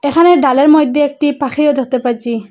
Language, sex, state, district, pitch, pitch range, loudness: Bengali, female, Assam, Hailakandi, 285 Hz, 260-295 Hz, -12 LUFS